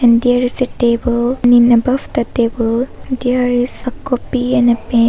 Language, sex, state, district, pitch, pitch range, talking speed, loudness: English, female, Arunachal Pradesh, Papum Pare, 245 Hz, 235-250 Hz, 190 wpm, -14 LUFS